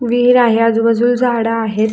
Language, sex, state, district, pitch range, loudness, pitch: Marathi, female, Maharashtra, Sindhudurg, 225-245 Hz, -13 LUFS, 230 Hz